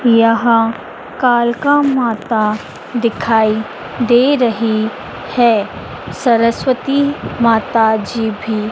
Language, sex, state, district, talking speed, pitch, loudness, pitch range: Hindi, female, Madhya Pradesh, Dhar, 70 wpm, 230 Hz, -14 LUFS, 220-245 Hz